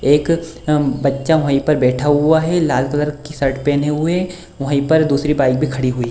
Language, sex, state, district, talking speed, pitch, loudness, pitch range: Hindi, female, Bihar, Supaul, 225 wpm, 145 Hz, -16 LUFS, 135-160 Hz